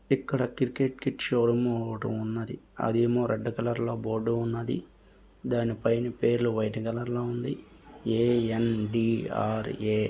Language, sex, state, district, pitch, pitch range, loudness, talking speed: Telugu, male, Andhra Pradesh, Visakhapatnam, 115 Hz, 115-120 Hz, -29 LUFS, 150 wpm